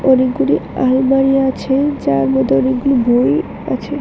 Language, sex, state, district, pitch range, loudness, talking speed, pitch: Bengali, female, Tripura, West Tripura, 240-270 Hz, -15 LUFS, 120 wpm, 260 Hz